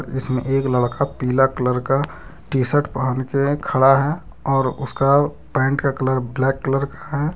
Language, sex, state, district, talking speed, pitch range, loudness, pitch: Hindi, male, Jharkhand, Deoghar, 165 wpm, 130-140 Hz, -20 LUFS, 135 Hz